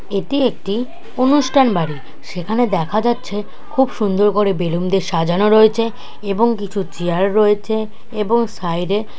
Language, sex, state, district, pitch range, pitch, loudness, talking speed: Bengali, female, West Bengal, North 24 Parganas, 190-230 Hz, 210 Hz, -17 LUFS, 135 wpm